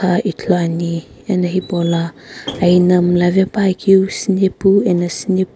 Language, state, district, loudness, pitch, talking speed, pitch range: Sumi, Nagaland, Kohima, -15 LUFS, 180 Hz, 120 wpm, 170-190 Hz